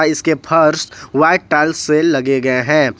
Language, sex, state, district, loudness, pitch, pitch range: Hindi, male, Jharkhand, Ranchi, -14 LUFS, 155 Hz, 140-160 Hz